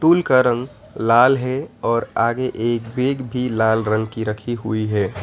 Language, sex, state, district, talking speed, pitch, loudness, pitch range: Hindi, male, West Bengal, Alipurduar, 185 wpm, 120 Hz, -19 LUFS, 110-130 Hz